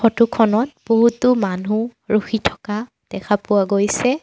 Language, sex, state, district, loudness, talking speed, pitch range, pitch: Assamese, female, Assam, Sonitpur, -18 LUFS, 125 wpm, 205-235 Hz, 220 Hz